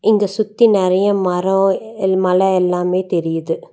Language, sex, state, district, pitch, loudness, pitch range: Tamil, female, Tamil Nadu, Nilgiris, 190 Hz, -16 LUFS, 180-205 Hz